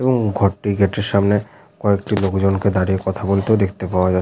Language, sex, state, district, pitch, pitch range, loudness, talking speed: Bengali, male, West Bengal, Jhargram, 100 Hz, 95-105 Hz, -18 LUFS, 185 wpm